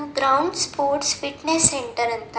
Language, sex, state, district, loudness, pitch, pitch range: Kannada, female, Karnataka, Dakshina Kannada, -20 LUFS, 280 Hz, 270-295 Hz